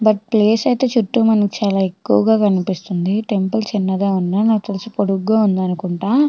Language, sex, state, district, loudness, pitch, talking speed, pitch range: Telugu, female, Andhra Pradesh, Chittoor, -17 LUFS, 205 Hz, 155 wpm, 190-220 Hz